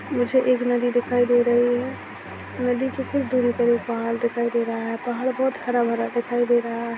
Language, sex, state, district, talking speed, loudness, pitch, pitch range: Hindi, male, Chhattisgarh, Sarguja, 190 wpm, -22 LUFS, 245 Hz, 235-250 Hz